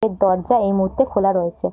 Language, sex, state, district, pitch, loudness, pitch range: Bengali, female, West Bengal, Jhargram, 195 Hz, -18 LUFS, 185-220 Hz